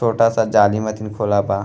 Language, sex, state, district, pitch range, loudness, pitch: Bhojpuri, male, Uttar Pradesh, Gorakhpur, 100-115 Hz, -17 LUFS, 110 Hz